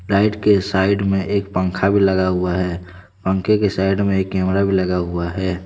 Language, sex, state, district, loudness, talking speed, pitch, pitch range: Hindi, male, Jharkhand, Deoghar, -18 LUFS, 210 wpm, 95 Hz, 95-100 Hz